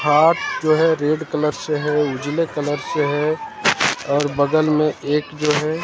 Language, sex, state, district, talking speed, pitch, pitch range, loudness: Hindi, male, Haryana, Jhajjar, 175 wpm, 150 Hz, 145-155 Hz, -19 LUFS